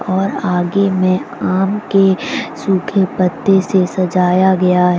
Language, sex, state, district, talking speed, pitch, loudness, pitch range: Hindi, female, Jharkhand, Deoghar, 130 wpm, 185 Hz, -15 LUFS, 180-195 Hz